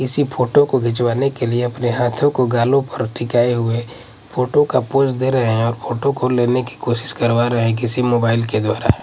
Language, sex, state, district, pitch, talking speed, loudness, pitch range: Hindi, male, Odisha, Malkangiri, 120 Hz, 210 wpm, -18 LUFS, 120-130 Hz